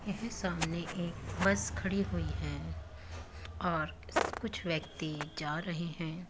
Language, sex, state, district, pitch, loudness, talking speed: Hindi, female, Uttar Pradesh, Muzaffarnagar, 150 Hz, -36 LUFS, 125 wpm